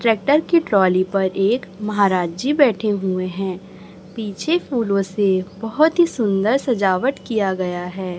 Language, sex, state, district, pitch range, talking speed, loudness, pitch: Hindi, male, Chhattisgarh, Raipur, 190-240 Hz, 145 wpm, -19 LUFS, 200 Hz